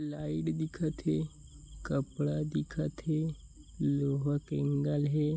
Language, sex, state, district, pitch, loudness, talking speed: Chhattisgarhi, male, Chhattisgarh, Bilaspur, 140 Hz, -33 LUFS, 110 wpm